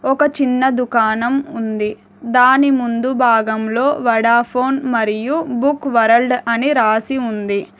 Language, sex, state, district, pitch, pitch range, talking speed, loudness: Telugu, female, Telangana, Hyderabad, 245 Hz, 225-265 Hz, 110 wpm, -16 LUFS